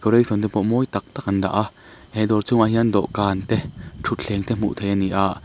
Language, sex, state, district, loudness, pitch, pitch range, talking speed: Mizo, male, Mizoram, Aizawl, -19 LUFS, 105 Hz, 100-110 Hz, 230 wpm